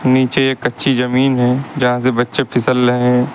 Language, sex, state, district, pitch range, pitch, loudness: Hindi, male, Uttar Pradesh, Lucknow, 125-130 Hz, 125 Hz, -15 LUFS